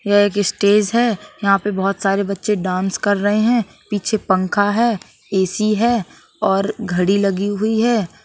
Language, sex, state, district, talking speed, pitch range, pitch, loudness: Hindi, male, Uttar Pradesh, Budaun, 165 wpm, 195-215 Hz, 205 Hz, -18 LUFS